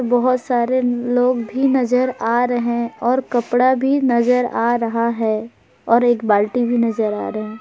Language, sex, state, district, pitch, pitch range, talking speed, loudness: Hindi, female, Jharkhand, Palamu, 240 Hz, 230-250 Hz, 175 wpm, -18 LUFS